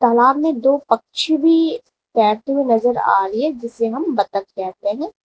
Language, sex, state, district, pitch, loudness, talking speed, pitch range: Hindi, female, Uttar Pradesh, Lalitpur, 255 Hz, -18 LUFS, 195 wpm, 230-315 Hz